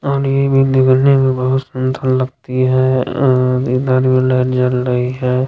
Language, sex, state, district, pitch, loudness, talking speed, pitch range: Hindi, male, Bihar, Jamui, 130 Hz, -14 LUFS, 165 wpm, 125-130 Hz